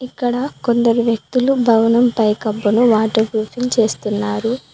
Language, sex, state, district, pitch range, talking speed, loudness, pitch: Telugu, female, Telangana, Mahabubabad, 220-245 Hz, 115 wpm, -16 LUFS, 230 Hz